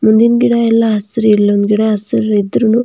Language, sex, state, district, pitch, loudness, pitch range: Kannada, female, Karnataka, Belgaum, 220 Hz, -12 LUFS, 210-230 Hz